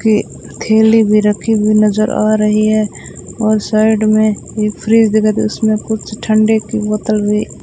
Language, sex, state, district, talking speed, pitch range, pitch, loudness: Hindi, female, Rajasthan, Bikaner, 180 wpm, 215-220 Hz, 215 Hz, -13 LUFS